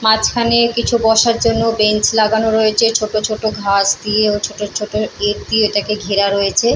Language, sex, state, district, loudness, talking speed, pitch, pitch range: Bengali, female, West Bengal, Purulia, -15 LUFS, 170 wpm, 215 Hz, 210-225 Hz